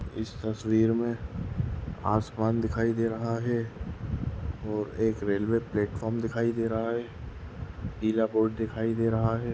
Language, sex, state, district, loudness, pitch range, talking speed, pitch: Hindi, male, Goa, North and South Goa, -29 LUFS, 105-115 Hz, 140 wpm, 110 Hz